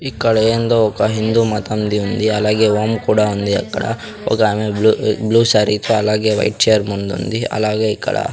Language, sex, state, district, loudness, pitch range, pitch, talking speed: Telugu, male, Andhra Pradesh, Sri Satya Sai, -16 LUFS, 105-110 Hz, 110 Hz, 160 wpm